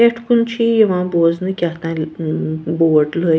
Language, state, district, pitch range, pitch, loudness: Kashmiri, Punjab, Kapurthala, 160-220 Hz, 170 Hz, -17 LUFS